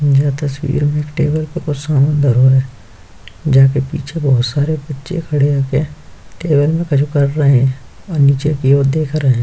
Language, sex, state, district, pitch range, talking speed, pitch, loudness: Hindi, male, Uttar Pradesh, Jyotiba Phule Nagar, 135-150 Hz, 190 wpm, 145 Hz, -15 LUFS